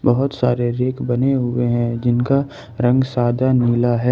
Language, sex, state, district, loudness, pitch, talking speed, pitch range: Hindi, male, Jharkhand, Ranchi, -18 LUFS, 125 Hz, 160 wpm, 120-130 Hz